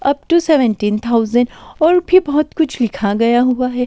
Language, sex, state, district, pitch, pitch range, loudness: Hindi, female, Delhi, New Delhi, 250 Hz, 235-310 Hz, -15 LUFS